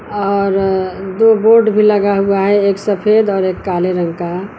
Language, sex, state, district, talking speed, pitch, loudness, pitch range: Hindi, female, Uttar Pradesh, Lucknow, 185 wpm, 200 Hz, -13 LUFS, 190-210 Hz